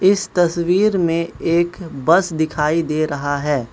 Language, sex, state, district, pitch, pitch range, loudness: Hindi, male, Manipur, Imphal West, 165 Hz, 150-175 Hz, -18 LUFS